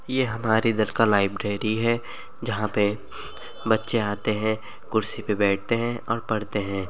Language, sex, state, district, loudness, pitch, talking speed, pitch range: Bhojpuri, male, Uttar Pradesh, Gorakhpur, -22 LUFS, 110 Hz, 155 wpm, 105-115 Hz